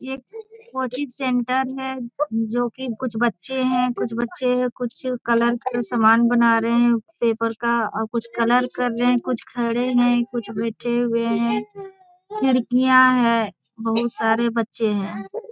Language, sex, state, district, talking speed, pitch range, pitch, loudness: Hindi, female, Bihar, Jamui, 160 wpm, 230-255 Hz, 240 Hz, -21 LUFS